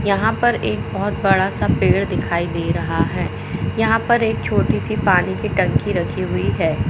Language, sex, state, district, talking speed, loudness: Hindi, female, Madhya Pradesh, Katni, 180 wpm, -19 LUFS